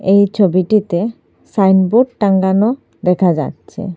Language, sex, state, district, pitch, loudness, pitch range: Bengali, female, Assam, Hailakandi, 195 Hz, -14 LUFS, 185-215 Hz